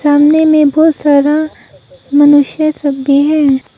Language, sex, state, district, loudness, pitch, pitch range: Hindi, female, Arunachal Pradesh, Papum Pare, -10 LUFS, 295 Hz, 285-310 Hz